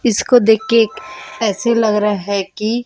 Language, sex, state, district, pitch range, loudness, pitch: Hindi, female, Chhattisgarh, Raipur, 210-235 Hz, -15 LUFS, 220 Hz